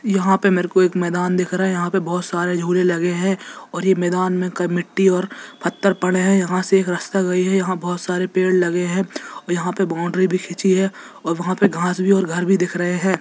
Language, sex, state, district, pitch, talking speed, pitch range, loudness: Hindi, male, Jharkhand, Jamtara, 185 Hz, 250 wpm, 175-190 Hz, -19 LUFS